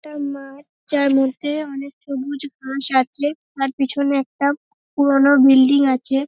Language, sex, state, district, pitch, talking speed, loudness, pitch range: Bengali, female, West Bengal, North 24 Parganas, 280 Hz, 145 wpm, -18 LUFS, 270-285 Hz